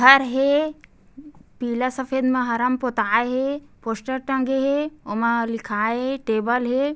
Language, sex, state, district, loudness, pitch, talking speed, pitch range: Chhattisgarhi, female, Chhattisgarh, Bastar, -22 LUFS, 255 Hz, 145 wpm, 235-270 Hz